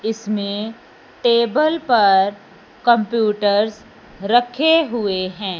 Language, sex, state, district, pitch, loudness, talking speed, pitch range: Hindi, male, Punjab, Fazilka, 220 Hz, -18 LUFS, 75 wpm, 205-240 Hz